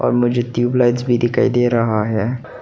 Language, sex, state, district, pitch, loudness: Hindi, male, Arunachal Pradesh, Papum Pare, 120 Hz, -17 LUFS